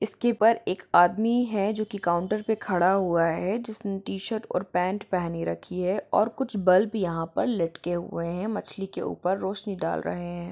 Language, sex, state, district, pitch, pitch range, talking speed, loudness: Hindi, female, Jharkhand, Jamtara, 190 Hz, 175-215 Hz, 195 wpm, -26 LUFS